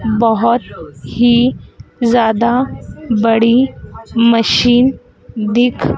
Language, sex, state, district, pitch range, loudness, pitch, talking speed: Hindi, female, Madhya Pradesh, Dhar, 225-245 Hz, -13 LUFS, 235 Hz, 60 wpm